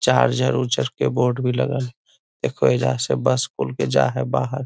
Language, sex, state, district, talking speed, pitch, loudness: Magahi, male, Bihar, Gaya, 195 wpm, 125 Hz, -21 LUFS